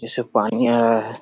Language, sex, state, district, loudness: Hindi, male, Jharkhand, Sahebganj, -19 LUFS